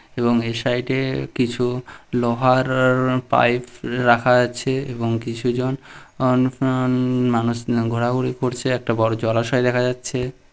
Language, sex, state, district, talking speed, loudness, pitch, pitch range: Bengali, male, West Bengal, Purulia, 130 wpm, -20 LUFS, 125 Hz, 120-130 Hz